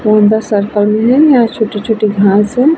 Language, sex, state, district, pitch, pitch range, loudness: Hindi, female, Bihar, Vaishali, 215 Hz, 210-235 Hz, -11 LUFS